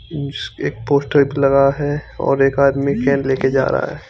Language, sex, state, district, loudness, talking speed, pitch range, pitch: Hindi, male, Chandigarh, Chandigarh, -17 LUFS, 175 wpm, 135-145 Hz, 140 Hz